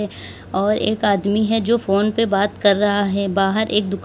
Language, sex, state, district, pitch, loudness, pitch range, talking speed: Hindi, female, Uttar Pradesh, Lalitpur, 205 Hz, -18 LUFS, 200-215 Hz, 210 wpm